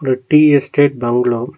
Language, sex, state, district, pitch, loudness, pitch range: Tamil, male, Tamil Nadu, Nilgiris, 130 Hz, -13 LUFS, 120-145 Hz